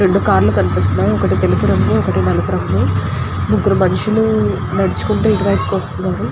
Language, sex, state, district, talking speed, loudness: Telugu, female, Andhra Pradesh, Guntur, 150 wpm, -15 LUFS